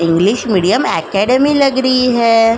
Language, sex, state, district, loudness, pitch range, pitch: Hindi, female, Uttar Pradesh, Jalaun, -12 LUFS, 195-255 Hz, 230 Hz